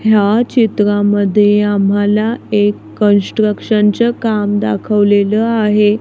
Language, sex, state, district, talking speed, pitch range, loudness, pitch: Marathi, female, Maharashtra, Gondia, 80 wpm, 205-220 Hz, -13 LUFS, 210 Hz